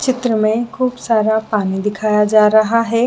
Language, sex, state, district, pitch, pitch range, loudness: Hindi, female, Jharkhand, Jamtara, 220 Hz, 215-230 Hz, -15 LUFS